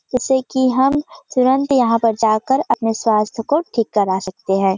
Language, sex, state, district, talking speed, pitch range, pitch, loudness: Hindi, female, Uttar Pradesh, Varanasi, 175 wpm, 215-265 Hz, 235 Hz, -17 LUFS